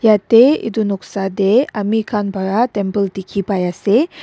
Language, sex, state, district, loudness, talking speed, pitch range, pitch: Nagamese, female, Nagaland, Dimapur, -16 LUFS, 140 wpm, 195-220 Hz, 205 Hz